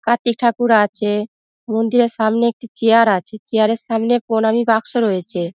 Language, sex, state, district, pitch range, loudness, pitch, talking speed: Bengali, female, West Bengal, Dakshin Dinajpur, 215-235 Hz, -17 LUFS, 225 Hz, 170 wpm